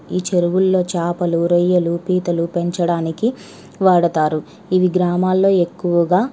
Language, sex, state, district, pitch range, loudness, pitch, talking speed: Telugu, female, Andhra Pradesh, Krishna, 170-185 Hz, -17 LUFS, 175 Hz, 105 wpm